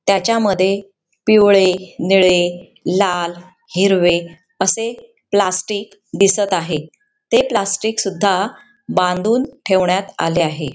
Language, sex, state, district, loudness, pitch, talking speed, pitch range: Marathi, female, Maharashtra, Sindhudurg, -16 LUFS, 190 Hz, 90 wpm, 180-205 Hz